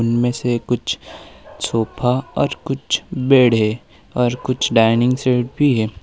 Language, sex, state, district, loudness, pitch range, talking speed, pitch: Hindi, male, Uttar Pradesh, Lalitpur, -18 LUFS, 115-125 Hz, 140 wpm, 120 Hz